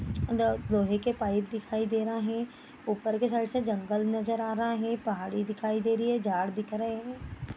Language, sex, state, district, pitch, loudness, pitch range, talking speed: Hindi, female, Bihar, Bhagalpur, 220 Hz, -30 LUFS, 210-230 Hz, 200 wpm